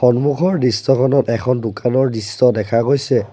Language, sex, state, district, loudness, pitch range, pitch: Assamese, male, Assam, Sonitpur, -16 LUFS, 115-135 Hz, 125 Hz